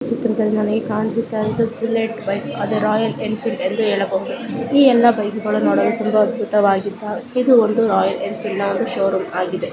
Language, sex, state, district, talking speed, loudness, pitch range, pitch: Kannada, female, Karnataka, Chamarajanagar, 155 wpm, -18 LUFS, 215-235 Hz, 220 Hz